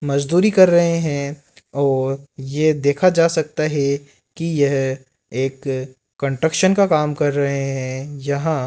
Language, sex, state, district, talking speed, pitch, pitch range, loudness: Hindi, male, Rajasthan, Jaipur, 145 wpm, 140 Hz, 135-155 Hz, -19 LUFS